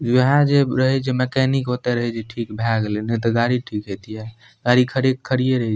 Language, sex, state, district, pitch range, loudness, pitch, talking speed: Maithili, male, Bihar, Madhepura, 115-130 Hz, -20 LUFS, 120 Hz, 230 wpm